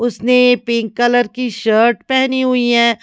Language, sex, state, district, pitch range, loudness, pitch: Hindi, female, Himachal Pradesh, Shimla, 230-250 Hz, -14 LUFS, 240 Hz